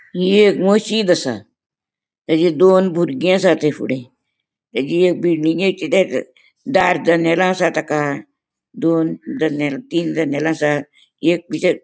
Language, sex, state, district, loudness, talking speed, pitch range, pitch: Konkani, female, Goa, North and South Goa, -17 LUFS, 110 wpm, 150-185 Hz, 170 Hz